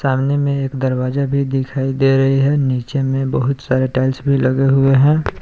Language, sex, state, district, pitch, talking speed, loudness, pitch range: Hindi, male, Jharkhand, Palamu, 135 Hz, 200 wpm, -16 LUFS, 130-140 Hz